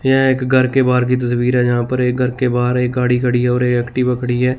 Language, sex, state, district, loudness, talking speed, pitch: Hindi, male, Chandigarh, Chandigarh, -16 LUFS, 275 wpm, 125 Hz